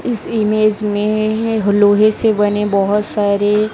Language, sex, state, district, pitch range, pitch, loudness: Hindi, female, Chhattisgarh, Raipur, 205-215 Hz, 210 Hz, -15 LUFS